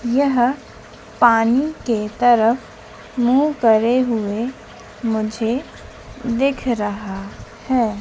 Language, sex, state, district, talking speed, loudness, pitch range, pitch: Hindi, female, Madhya Pradesh, Dhar, 80 wpm, -18 LUFS, 220-255 Hz, 235 Hz